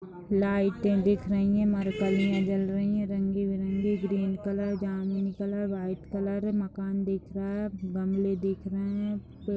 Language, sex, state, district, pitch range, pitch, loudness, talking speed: Hindi, female, Bihar, Saran, 195-200 Hz, 195 Hz, -29 LUFS, 150 wpm